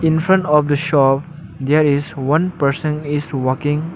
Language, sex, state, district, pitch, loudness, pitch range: English, male, Arunachal Pradesh, Lower Dibang Valley, 150 Hz, -17 LUFS, 140-155 Hz